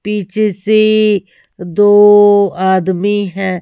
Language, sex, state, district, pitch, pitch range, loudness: Hindi, female, Haryana, Rohtak, 205 Hz, 190-210 Hz, -11 LUFS